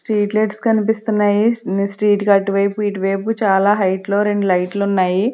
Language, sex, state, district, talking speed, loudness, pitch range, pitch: Telugu, female, Andhra Pradesh, Sri Satya Sai, 180 wpm, -17 LUFS, 195-215 Hz, 205 Hz